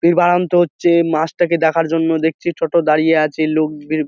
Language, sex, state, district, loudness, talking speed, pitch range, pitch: Bengali, male, West Bengal, Dakshin Dinajpur, -16 LUFS, 160 wpm, 155-170 Hz, 165 Hz